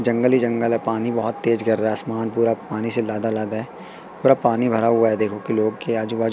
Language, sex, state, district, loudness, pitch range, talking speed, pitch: Hindi, male, Madhya Pradesh, Katni, -20 LUFS, 110-115 Hz, 265 wpm, 115 Hz